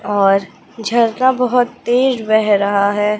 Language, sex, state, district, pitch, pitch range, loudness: Hindi, female, Bihar, West Champaran, 220 Hz, 205-245 Hz, -15 LUFS